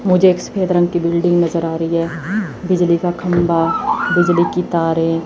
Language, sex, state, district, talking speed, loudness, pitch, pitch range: Hindi, female, Chandigarh, Chandigarh, 185 wpm, -16 LUFS, 175 Hz, 165-180 Hz